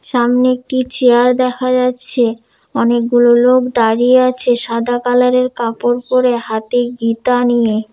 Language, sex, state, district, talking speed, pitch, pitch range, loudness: Bengali, female, West Bengal, Dakshin Dinajpur, 135 wpm, 245 Hz, 235-250 Hz, -14 LUFS